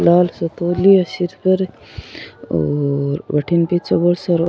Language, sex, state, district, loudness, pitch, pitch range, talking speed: Rajasthani, female, Rajasthan, Churu, -17 LUFS, 175 Hz, 165-180 Hz, 160 wpm